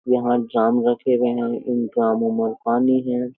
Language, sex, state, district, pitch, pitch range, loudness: Hindi, male, Uttar Pradesh, Jyotiba Phule Nagar, 125 Hz, 120-130 Hz, -20 LUFS